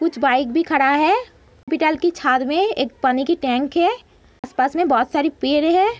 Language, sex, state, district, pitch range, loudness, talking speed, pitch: Hindi, female, Uttar Pradesh, Etah, 265-345 Hz, -18 LUFS, 200 wpm, 305 Hz